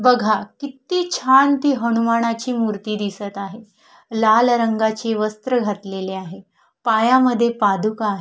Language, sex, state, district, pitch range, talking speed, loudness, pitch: Marathi, female, Maharashtra, Solapur, 210-250 Hz, 115 wpm, -19 LUFS, 225 Hz